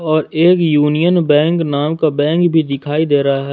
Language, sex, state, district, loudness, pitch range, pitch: Hindi, male, Jharkhand, Ranchi, -14 LUFS, 145-165 Hz, 155 Hz